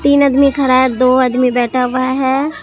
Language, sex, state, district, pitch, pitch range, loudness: Hindi, female, Bihar, Katihar, 260 Hz, 255-275 Hz, -13 LUFS